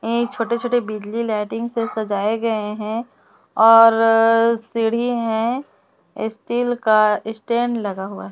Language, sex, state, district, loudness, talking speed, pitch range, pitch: Hindi, female, Chhattisgarh, Raipur, -19 LUFS, 125 wpm, 215-235 Hz, 225 Hz